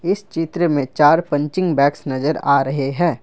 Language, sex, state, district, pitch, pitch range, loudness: Hindi, male, Assam, Kamrup Metropolitan, 150 Hz, 140-175 Hz, -18 LUFS